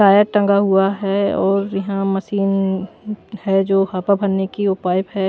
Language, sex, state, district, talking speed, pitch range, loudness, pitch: Hindi, female, Maharashtra, Washim, 170 wpm, 195-200 Hz, -18 LUFS, 195 Hz